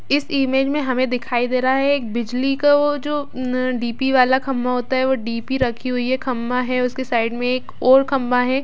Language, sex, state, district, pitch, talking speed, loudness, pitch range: Hindi, female, Bihar, East Champaran, 255 Hz, 215 wpm, -19 LUFS, 250-270 Hz